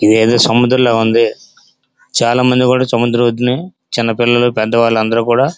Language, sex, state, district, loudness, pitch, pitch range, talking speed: Telugu, male, Andhra Pradesh, Srikakulam, -13 LUFS, 120 Hz, 115-125 Hz, 160 wpm